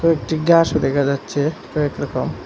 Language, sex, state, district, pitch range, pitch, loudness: Bengali, male, Assam, Hailakandi, 140-165 Hz, 150 Hz, -19 LUFS